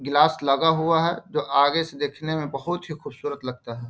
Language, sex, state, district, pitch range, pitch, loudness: Hindi, male, Bihar, Bhagalpur, 140-165 Hz, 150 Hz, -23 LUFS